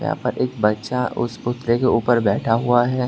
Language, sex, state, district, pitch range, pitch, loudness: Hindi, male, Tripura, West Tripura, 115-125 Hz, 120 Hz, -20 LUFS